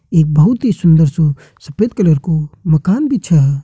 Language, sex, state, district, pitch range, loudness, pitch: Kumaoni, male, Uttarakhand, Tehri Garhwal, 150-195 Hz, -13 LUFS, 160 Hz